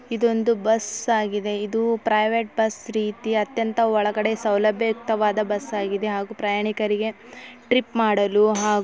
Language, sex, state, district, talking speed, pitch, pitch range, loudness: Kannada, female, Karnataka, Belgaum, 120 wpm, 215 Hz, 210-230 Hz, -22 LUFS